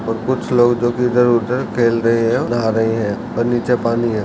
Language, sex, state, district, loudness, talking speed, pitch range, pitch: Hindi, male, Chhattisgarh, Raigarh, -16 LUFS, 200 wpm, 115-120 Hz, 120 Hz